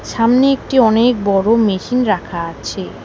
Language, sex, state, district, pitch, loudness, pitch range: Bengali, female, West Bengal, Alipurduar, 225 Hz, -15 LUFS, 195-250 Hz